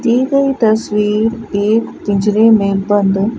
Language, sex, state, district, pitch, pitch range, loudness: Hindi, female, Rajasthan, Bikaner, 215 Hz, 205-230 Hz, -13 LUFS